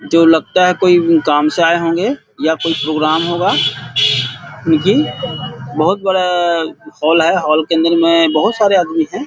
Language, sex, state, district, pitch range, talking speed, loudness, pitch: Hindi, male, Bihar, Saharsa, 155-180 Hz, 155 wpm, -13 LUFS, 165 Hz